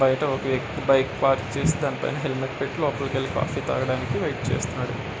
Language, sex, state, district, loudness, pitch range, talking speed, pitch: Telugu, male, Andhra Pradesh, Guntur, -25 LUFS, 130-140 Hz, 175 wpm, 135 Hz